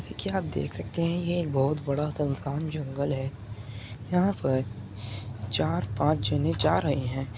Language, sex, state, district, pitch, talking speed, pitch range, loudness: Hindi, male, Uttar Pradesh, Muzaffarnagar, 135 Hz, 180 wpm, 110-150 Hz, -28 LUFS